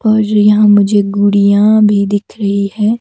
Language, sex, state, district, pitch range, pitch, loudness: Hindi, female, Himachal Pradesh, Shimla, 200-215 Hz, 205 Hz, -10 LUFS